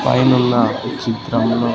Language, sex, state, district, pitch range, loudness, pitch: Telugu, male, Andhra Pradesh, Sri Satya Sai, 115-125 Hz, -17 LUFS, 120 Hz